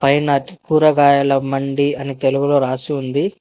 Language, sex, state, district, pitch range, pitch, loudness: Telugu, male, Telangana, Hyderabad, 135-145 Hz, 140 Hz, -16 LUFS